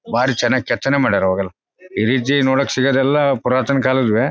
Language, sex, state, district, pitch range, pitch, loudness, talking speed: Kannada, male, Karnataka, Bellary, 120-135 Hz, 130 Hz, -17 LUFS, 140 wpm